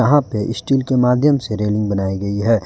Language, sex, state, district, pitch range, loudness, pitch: Hindi, male, Jharkhand, Garhwa, 105-130 Hz, -17 LUFS, 115 Hz